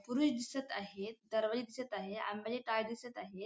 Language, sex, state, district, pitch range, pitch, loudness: Marathi, female, Maharashtra, Sindhudurg, 210-245 Hz, 225 Hz, -39 LUFS